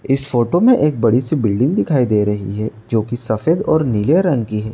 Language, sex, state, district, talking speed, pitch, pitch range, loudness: Hindi, male, Uttar Pradesh, Etah, 240 wpm, 120 Hz, 110-150 Hz, -16 LUFS